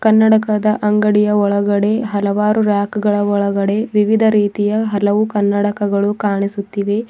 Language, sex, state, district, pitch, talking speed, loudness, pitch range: Kannada, female, Karnataka, Bidar, 205 Hz, 100 wpm, -15 LUFS, 205-215 Hz